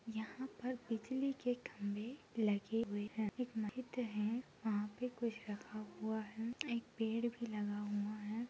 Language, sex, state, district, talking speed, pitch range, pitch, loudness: Hindi, female, Maharashtra, Aurangabad, 170 wpm, 210-240 Hz, 225 Hz, -42 LUFS